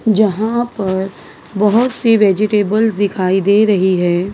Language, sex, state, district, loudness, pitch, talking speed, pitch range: Hindi, female, Maharashtra, Mumbai Suburban, -14 LUFS, 205 Hz, 125 wpm, 190-220 Hz